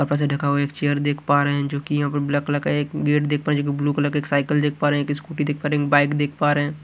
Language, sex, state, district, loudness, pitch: Hindi, male, Haryana, Rohtak, -21 LUFS, 145 Hz